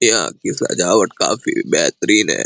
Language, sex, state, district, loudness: Hindi, male, Jharkhand, Jamtara, -16 LUFS